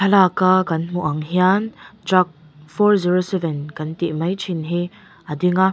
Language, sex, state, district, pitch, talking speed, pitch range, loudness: Mizo, female, Mizoram, Aizawl, 180 Hz, 180 wpm, 160-190 Hz, -19 LUFS